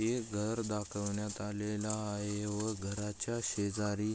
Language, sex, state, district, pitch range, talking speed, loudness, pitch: Marathi, male, Maharashtra, Aurangabad, 105-110 Hz, 130 wpm, -37 LUFS, 105 Hz